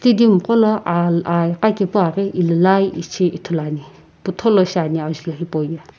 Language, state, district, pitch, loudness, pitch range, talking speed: Sumi, Nagaland, Kohima, 175 Hz, -17 LUFS, 165-195 Hz, 160 wpm